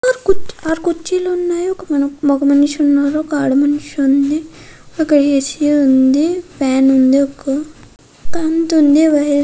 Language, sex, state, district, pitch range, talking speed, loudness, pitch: Telugu, female, Andhra Pradesh, Krishna, 280-330 Hz, 125 wpm, -14 LUFS, 295 Hz